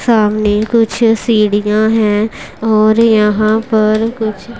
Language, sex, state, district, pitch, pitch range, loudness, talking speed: Hindi, male, Punjab, Pathankot, 215 Hz, 210-225 Hz, -12 LUFS, 105 wpm